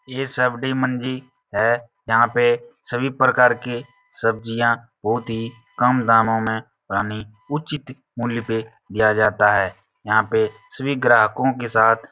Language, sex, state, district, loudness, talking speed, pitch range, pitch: Hindi, male, Uttar Pradesh, Etah, -20 LUFS, 145 wpm, 110-130 Hz, 120 Hz